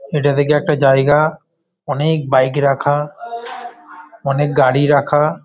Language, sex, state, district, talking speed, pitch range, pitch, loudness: Bengali, male, West Bengal, Paschim Medinipur, 110 wpm, 140-165 Hz, 150 Hz, -15 LUFS